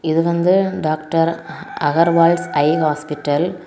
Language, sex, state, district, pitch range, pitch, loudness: Tamil, female, Tamil Nadu, Kanyakumari, 155-170 Hz, 165 Hz, -17 LUFS